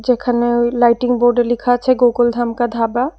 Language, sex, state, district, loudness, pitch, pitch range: Bengali, female, Tripura, West Tripura, -15 LUFS, 240 Hz, 240-245 Hz